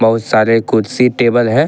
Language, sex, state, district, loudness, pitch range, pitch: Hindi, male, Jharkhand, Ranchi, -13 LUFS, 110-125 Hz, 115 Hz